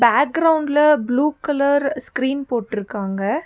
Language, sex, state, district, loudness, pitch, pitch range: Tamil, female, Tamil Nadu, Nilgiris, -19 LUFS, 280 Hz, 235-295 Hz